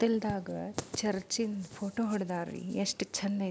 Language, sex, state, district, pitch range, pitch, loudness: Kannada, female, Karnataka, Belgaum, 190-215 Hz, 200 Hz, -34 LUFS